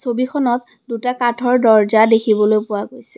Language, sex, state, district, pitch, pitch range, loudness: Assamese, female, Assam, Kamrup Metropolitan, 230 Hz, 215-250 Hz, -16 LUFS